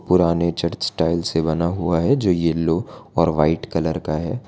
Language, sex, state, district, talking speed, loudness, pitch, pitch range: Hindi, male, Gujarat, Valsad, 185 wpm, -20 LUFS, 85 Hz, 80-90 Hz